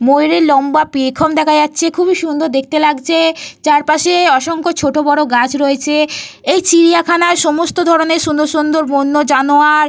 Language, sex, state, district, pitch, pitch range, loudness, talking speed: Bengali, female, Jharkhand, Jamtara, 305 Hz, 295-330 Hz, -12 LUFS, 140 wpm